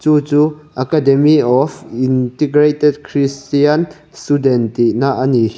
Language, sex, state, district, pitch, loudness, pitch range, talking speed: Mizo, male, Mizoram, Aizawl, 145 Hz, -14 LUFS, 130-150 Hz, 120 wpm